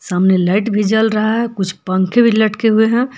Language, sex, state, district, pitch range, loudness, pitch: Hindi, female, Jharkhand, Palamu, 190-225 Hz, -14 LUFS, 215 Hz